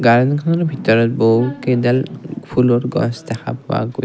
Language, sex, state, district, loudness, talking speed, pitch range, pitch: Assamese, male, Assam, Kamrup Metropolitan, -17 LUFS, 135 wpm, 115-135 Hz, 125 Hz